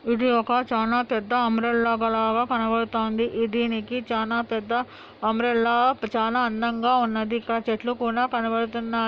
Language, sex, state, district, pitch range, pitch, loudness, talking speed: Telugu, female, Andhra Pradesh, Anantapur, 225-240 Hz, 230 Hz, -24 LUFS, 120 wpm